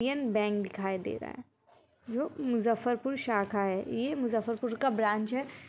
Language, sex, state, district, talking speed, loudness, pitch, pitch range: Hindi, female, Bihar, Muzaffarpur, 200 wpm, -32 LUFS, 230 Hz, 210-260 Hz